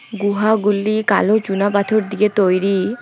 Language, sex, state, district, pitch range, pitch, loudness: Bengali, female, West Bengal, Alipurduar, 200-215 Hz, 205 Hz, -17 LUFS